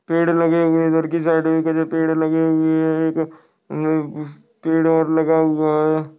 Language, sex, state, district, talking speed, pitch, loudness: Hindi, male, Goa, North and South Goa, 175 wpm, 160 Hz, -18 LUFS